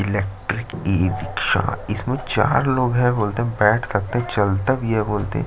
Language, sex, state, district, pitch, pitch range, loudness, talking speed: Hindi, male, Chhattisgarh, Jashpur, 105 Hz, 100-120 Hz, -21 LUFS, 185 wpm